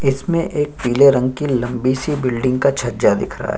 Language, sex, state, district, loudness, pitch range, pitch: Hindi, male, Chhattisgarh, Sukma, -17 LUFS, 125-145 Hz, 130 Hz